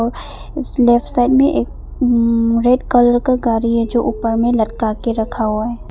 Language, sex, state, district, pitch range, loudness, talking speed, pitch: Hindi, female, Arunachal Pradesh, Papum Pare, 230-245 Hz, -15 LUFS, 185 wpm, 235 Hz